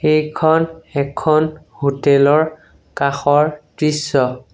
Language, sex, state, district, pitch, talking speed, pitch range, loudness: Assamese, male, Assam, Sonitpur, 150 Hz, 80 wpm, 140-155 Hz, -17 LUFS